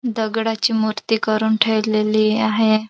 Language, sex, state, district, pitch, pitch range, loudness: Marathi, female, Maharashtra, Dhule, 220 Hz, 215-225 Hz, -18 LUFS